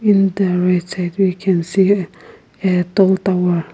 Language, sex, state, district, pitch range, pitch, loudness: English, female, Nagaland, Kohima, 180-195 Hz, 185 Hz, -16 LUFS